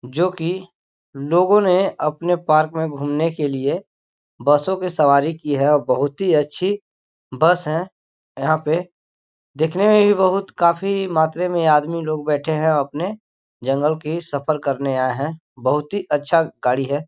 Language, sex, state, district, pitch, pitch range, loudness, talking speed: Hindi, male, Chhattisgarh, Korba, 160 Hz, 145-180 Hz, -19 LUFS, 160 wpm